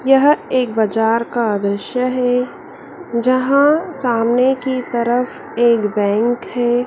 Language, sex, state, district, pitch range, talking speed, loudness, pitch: Hindi, female, Madhya Pradesh, Dhar, 230-255 Hz, 115 wpm, -16 LUFS, 245 Hz